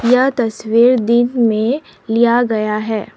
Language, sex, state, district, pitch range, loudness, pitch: Hindi, female, Assam, Sonitpur, 220-245 Hz, -15 LUFS, 235 Hz